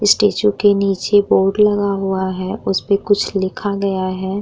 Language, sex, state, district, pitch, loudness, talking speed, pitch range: Hindi, female, Uttar Pradesh, Muzaffarnagar, 200 Hz, -16 LUFS, 165 wpm, 190-205 Hz